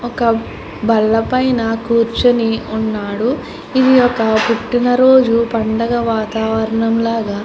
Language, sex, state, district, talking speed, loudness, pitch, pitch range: Telugu, female, Andhra Pradesh, Chittoor, 95 wpm, -15 LUFS, 230 Hz, 220-240 Hz